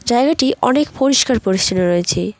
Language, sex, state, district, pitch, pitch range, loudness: Bengali, female, West Bengal, Cooch Behar, 245 Hz, 190-265 Hz, -15 LUFS